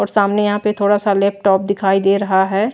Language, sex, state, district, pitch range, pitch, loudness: Hindi, female, Maharashtra, Washim, 195-205 Hz, 200 Hz, -15 LUFS